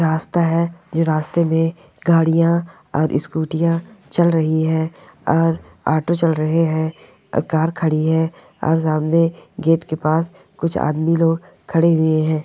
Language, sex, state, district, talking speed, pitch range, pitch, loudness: Hindi, female, Rajasthan, Nagaur, 140 wpm, 160-165 Hz, 165 Hz, -19 LUFS